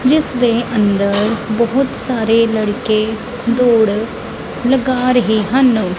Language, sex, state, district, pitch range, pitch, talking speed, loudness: Punjabi, female, Punjab, Kapurthala, 215-250 Hz, 230 Hz, 100 wpm, -15 LUFS